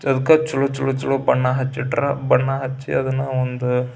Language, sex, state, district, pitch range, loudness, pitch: Kannada, male, Karnataka, Belgaum, 130-135 Hz, -20 LUFS, 135 Hz